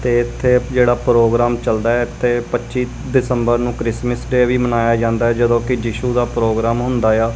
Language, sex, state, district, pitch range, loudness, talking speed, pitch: Punjabi, male, Punjab, Kapurthala, 115-125 Hz, -16 LUFS, 190 wpm, 120 Hz